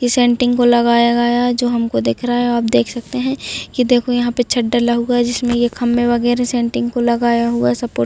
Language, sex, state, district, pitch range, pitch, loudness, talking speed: Hindi, female, Bihar, Gopalganj, 235-245 Hz, 240 Hz, -16 LUFS, 255 wpm